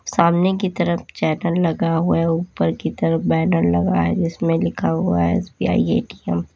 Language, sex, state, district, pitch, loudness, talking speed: Hindi, female, Uttar Pradesh, Lalitpur, 165 Hz, -19 LUFS, 185 wpm